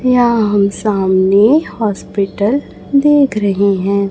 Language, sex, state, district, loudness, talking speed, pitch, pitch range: Hindi, male, Chhattisgarh, Raipur, -13 LUFS, 100 wpm, 205 Hz, 200-245 Hz